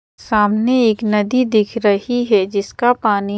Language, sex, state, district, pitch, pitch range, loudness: Hindi, female, Madhya Pradesh, Bhopal, 215 Hz, 205-240 Hz, -16 LUFS